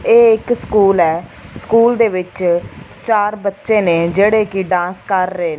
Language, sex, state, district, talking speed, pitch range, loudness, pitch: Punjabi, female, Punjab, Fazilka, 170 wpm, 180-220 Hz, -14 LUFS, 195 Hz